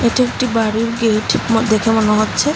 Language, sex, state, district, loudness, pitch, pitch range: Bengali, female, Assam, Hailakandi, -15 LUFS, 225 Hz, 220-235 Hz